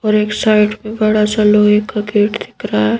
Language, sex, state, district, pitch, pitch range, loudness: Hindi, female, Madhya Pradesh, Bhopal, 210 Hz, 210-215 Hz, -14 LUFS